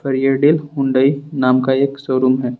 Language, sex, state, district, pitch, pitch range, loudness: Hindi, male, Jharkhand, Ranchi, 135 Hz, 130-140 Hz, -16 LUFS